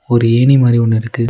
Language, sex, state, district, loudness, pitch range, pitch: Tamil, male, Tamil Nadu, Nilgiris, -12 LUFS, 115-120 Hz, 120 Hz